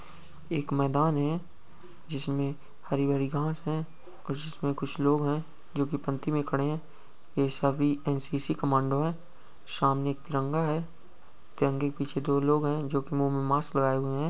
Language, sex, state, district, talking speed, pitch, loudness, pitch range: Hindi, male, Uttar Pradesh, Ghazipur, 170 wpm, 145 Hz, -29 LUFS, 140-155 Hz